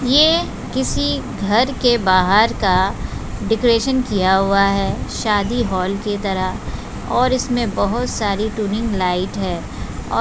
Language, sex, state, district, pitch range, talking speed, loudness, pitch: Hindi, female, Chhattisgarh, Bastar, 195-240 Hz, 125 wpm, -18 LUFS, 215 Hz